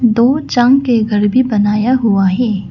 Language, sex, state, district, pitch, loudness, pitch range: Hindi, female, Arunachal Pradesh, Lower Dibang Valley, 235 Hz, -12 LUFS, 210-250 Hz